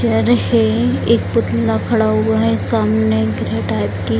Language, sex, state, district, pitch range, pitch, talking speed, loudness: Hindi, female, Bihar, Gopalganj, 110-115 Hz, 110 Hz, 145 wpm, -16 LUFS